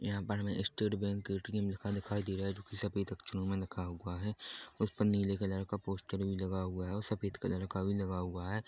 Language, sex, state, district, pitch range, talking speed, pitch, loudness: Hindi, male, Chhattisgarh, Korba, 95-105 Hz, 250 wpm, 100 Hz, -38 LUFS